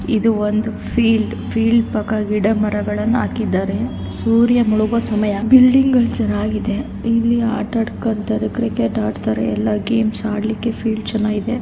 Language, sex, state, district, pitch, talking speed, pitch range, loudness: Kannada, female, Karnataka, Raichur, 220 Hz, 125 wpm, 210-230 Hz, -17 LUFS